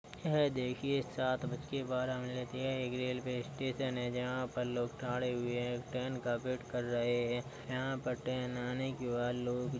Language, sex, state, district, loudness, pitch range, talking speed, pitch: Hindi, male, Uttar Pradesh, Budaun, -37 LUFS, 125-130 Hz, 185 wpm, 125 Hz